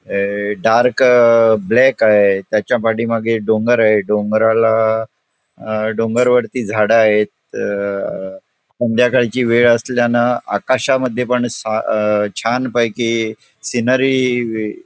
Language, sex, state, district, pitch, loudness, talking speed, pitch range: Marathi, male, Goa, North and South Goa, 115 Hz, -15 LUFS, 100 wpm, 110-120 Hz